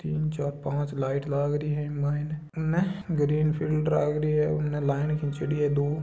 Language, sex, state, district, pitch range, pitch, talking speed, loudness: Marwari, male, Rajasthan, Nagaur, 145-155 Hz, 150 Hz, 210 wpm, -27 LUFS